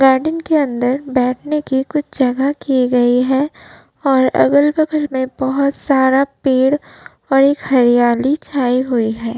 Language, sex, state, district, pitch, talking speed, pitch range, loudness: Hindi, female, Uttar Pradesh, Budaun, 265 Hz, 140 wpm, 255-285 Hz, -15 LUFS